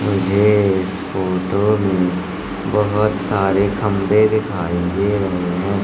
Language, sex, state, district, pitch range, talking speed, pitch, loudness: Hindi, male, Madhya Pradesh, Katni, 95-100 Hz, 115 wpm, 95 Hz, -18 LUFS